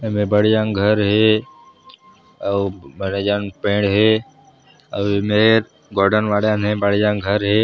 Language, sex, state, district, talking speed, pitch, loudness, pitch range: Chhattisgarhi, male, Chhattisgarh, Sarguja, 155 wpm, 105 Hz, -18 LUFS, 100-110 Hz